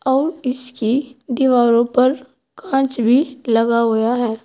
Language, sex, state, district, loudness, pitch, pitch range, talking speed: Hindi, female, Uttar Pradesh, Saharanpur, -17 LUFS, 255 Hz, 235-265 Hz, 120 wpm